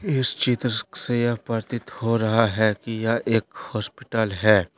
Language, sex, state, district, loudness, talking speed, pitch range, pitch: Hindi, male, Jharkhand, Deoghar, -23 LUFS, 165 wpm, 110-120 Hz, 115 Hz